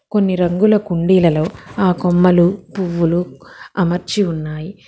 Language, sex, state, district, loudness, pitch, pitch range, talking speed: Telugu, female, Telangana, Hyderabad, -16 LUFS, 180 Hz, 170-190 Hz, 100 wpm